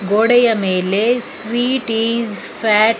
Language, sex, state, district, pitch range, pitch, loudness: Kannada, female, Karnataka, Bangalore, 210-235 Hz, 225 Hz, -16 LUFS